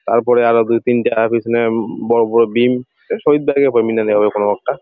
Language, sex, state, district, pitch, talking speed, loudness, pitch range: Bengali, male, West Bengal, Jalpaiguri, 115 Hz, 135 wpm, -15 LUFS, 115-120 Hz